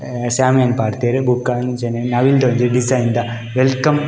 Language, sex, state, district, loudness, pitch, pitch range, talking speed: Tulu, male, Karnataka, Dakshina Kannada, -16 LUFS, 125 Hz, 120-130 Hz, 160 wpm